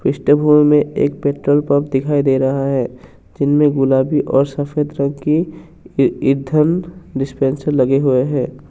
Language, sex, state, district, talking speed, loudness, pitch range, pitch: Hindi, male, Assam, Kamrup Metropolitan, 145 wpm, -16 LUFS, 135-150 Hz, 140 Hz